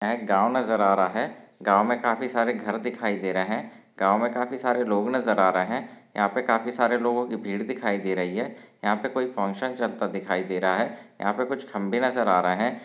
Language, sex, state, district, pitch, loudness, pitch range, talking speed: Hindi, male, Maharashtra, Solapur, 110 Hz, -25 LUFS, 100-120 Hz, 235 wpm